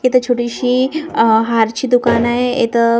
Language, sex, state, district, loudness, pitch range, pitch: Marathi, female, Maharashtra, Gondia, -15 LUFS, 235-255 Hz, 240 Hz